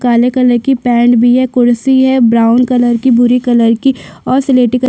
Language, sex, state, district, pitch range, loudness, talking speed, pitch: Hindi, female, Chhattisgarh, Sukma, 240-255 Hz, -10 LUFS, 220 wpm, 245 Hz